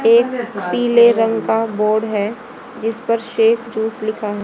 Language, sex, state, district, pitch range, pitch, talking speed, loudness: Hindi, female, Haryana, Rohtak, 215-235 Hz, 225 Hz, 160 wpm, -17 LUFS